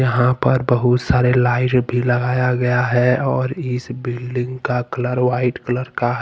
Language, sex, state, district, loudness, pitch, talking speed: Hindi, male, Jharkhand, Ranchi, -18 LUFS, 125 Hz, 175 wpm